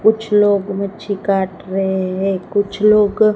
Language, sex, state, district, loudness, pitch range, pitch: Hindi, female, Gujarat, Gandhinagar, -17 LUFS, 195-210 Hz, 200 Hz